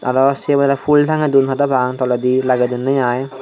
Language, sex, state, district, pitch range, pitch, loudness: Chakma, male, Tripura, Dhalai, 125-140 Hz, 135 Hz, -15 LUFS